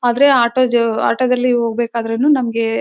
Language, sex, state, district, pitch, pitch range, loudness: Kannada, female, Karnataka, Bellary, 240 Hz, 230-255 Hz, -15 LUFS